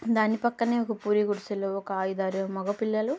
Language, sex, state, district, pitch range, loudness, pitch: Telugu, female, Andhra Pradesh, Guntur, 195-220 Hz, -28 LUFS, 210 Hz